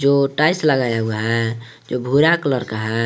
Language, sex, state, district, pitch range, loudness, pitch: Hindi, male, Jharkhand, Garhwa, 115-140 Hz, -18 LUFS, 125 Hz